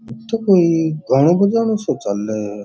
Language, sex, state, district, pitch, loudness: Rajasthani, male, Rajasthan, Churu, 160 Hz, -17 LUFS